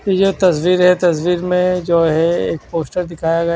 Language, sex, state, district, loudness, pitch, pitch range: Hindi, male, Haryana, Charkhi Dadri, -15 LUFS, 175 Hz, 170-180 Hz